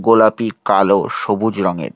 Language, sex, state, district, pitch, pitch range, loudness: Bengali, male, West Bengal, Alipurduar, 110 Hz, 100-115 Hz, -16 LUFS